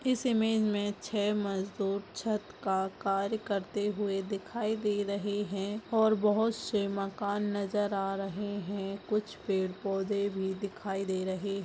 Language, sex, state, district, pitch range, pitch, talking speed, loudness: Hindi, female, Chhattisgarh, Bastar, 195-210 Hz, 200 Hz, 155 wpm, -32 LUFS